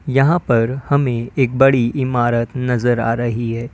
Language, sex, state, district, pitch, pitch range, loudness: Hindi, male, Uttar Pradesh, Lalitpur, 120 Hz, 115-135 Hz, -17 LUFS